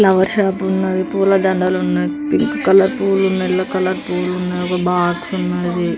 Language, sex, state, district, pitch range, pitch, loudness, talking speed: Telugu, female, Telangana, Karimnagar, 175-190 Hz, 185 Hz, -17 LUFS, 140 wpm